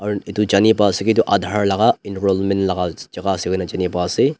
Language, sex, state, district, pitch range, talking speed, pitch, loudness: Nagamese, male, Nagaland, Dimapur, 95-105 Hz, 175 wpm, 100 Hz, -18 LUFS